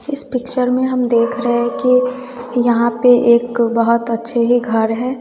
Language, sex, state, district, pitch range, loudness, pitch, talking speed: Hindi, female, Bihar, West Champaran, 235-250 Hz, -15 LUFS, 245 Hz, 175 wpm